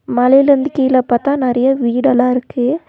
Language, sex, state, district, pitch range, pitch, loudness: Tamil, female, Tamil Nadu, Nilgiris, 245-275 Hz, 255 Hz, -13 LUFS